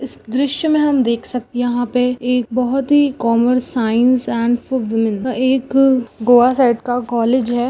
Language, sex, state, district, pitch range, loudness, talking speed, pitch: Hindi, female, Goa, North and South Goa, 240-260 Hz, -16 LUFS, 170 wpm, 250 Hz